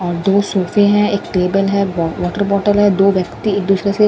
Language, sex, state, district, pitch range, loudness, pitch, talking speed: Hindi, female, Bihar, Katihar, 185-205 Hz, -15 LUFS, 200 Hz, 235 wpm